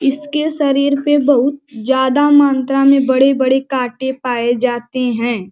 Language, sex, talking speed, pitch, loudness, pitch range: Hindi, male, 130 wpm, 265 Hz, -14 LUFS, 255-280 Hz